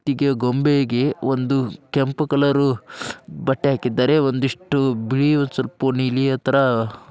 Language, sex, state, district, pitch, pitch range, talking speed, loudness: Kannada, male, Karnataka, Dharwad, 135 Hz, 130-140 Hz, 65 wpm, -20 LUFS